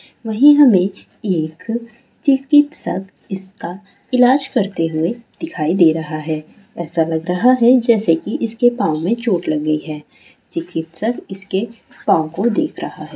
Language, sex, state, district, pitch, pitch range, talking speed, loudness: Hindi, female, Bihar, Saran, 195 Hz, 165-235 Hz, 140 wpm, -17 LUFS